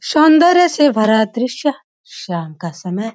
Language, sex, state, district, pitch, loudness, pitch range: Hindi, female, Uttarakhand, Uttarkashi, 240 Hz, -14 LUFS, 185-305 Hz